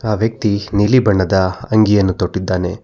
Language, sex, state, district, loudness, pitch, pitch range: Kannada, male, Karnataka, Bangalore, -15 LUFS, 105 Hz, 95-110 Hz